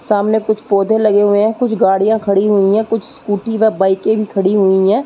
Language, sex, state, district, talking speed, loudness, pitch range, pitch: Hindi, female, Uttar Pradesh, Muzaffarnagar, 225 wpm, -14 LUFS, 200-220 Hz, 210 Hz